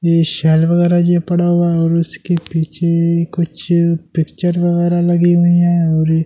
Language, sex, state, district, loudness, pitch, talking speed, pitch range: Hindi, male, Delhi, New Delhi, -14 LUFS, 170 Hz, 180 wpm, 165-175 Hz